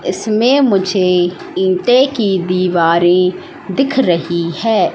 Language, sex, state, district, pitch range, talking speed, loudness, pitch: Hindi, female, Madhya Pradesh, Katni, 175-235 Hz, 95 wpm, -14 LUFS, 185 Hz